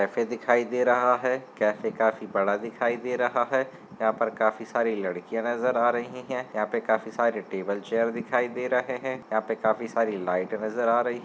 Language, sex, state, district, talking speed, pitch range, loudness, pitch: Hindi, male, Bihar, Darbhanga, 210 wpm, 110-125 Hz, -27 LUFS, 115 Hz